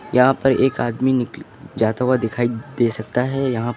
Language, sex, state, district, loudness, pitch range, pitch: Hindi, male, Uttar Pradesh, Lucknow, -20 LUFS, 115-130 Hz, 125 Hz